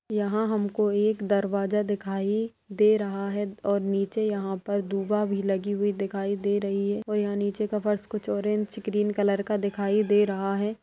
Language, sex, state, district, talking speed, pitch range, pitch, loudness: Hindi, female, Maharashtra, Solapur, 185 wpm, 200-210 Hz, 205 Hz, -27 LUFS